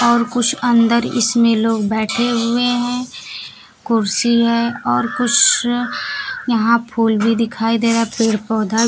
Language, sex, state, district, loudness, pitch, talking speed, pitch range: Hindi, female, Bihar, Kaimur, -16 LUFS, 235 Hz, 135 wpm, 225-240 Hz